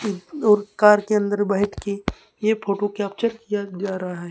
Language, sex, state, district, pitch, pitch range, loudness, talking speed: Hindi, male, Maharashtra, Gondia, 205 Hz, 200-215 Hz, -22 LUFS, 180 wpm